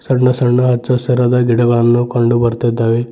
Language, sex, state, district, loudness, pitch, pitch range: Kannada, male, Karnataka, Bidar, -13 LUFS, 120 Hz, 120-125 Hz